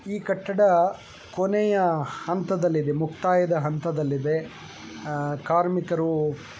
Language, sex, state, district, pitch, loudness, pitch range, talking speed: Kannada, male, Karnataka, Chamarajanagar, 170 Hz, -24 LUFS, 150-185 Hz, 190 wpm